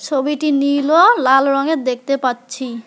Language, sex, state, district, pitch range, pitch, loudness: Bengali, female, West Bengal, Alipurduar, 255-290 Hz, 275 Hz, -15 LUFS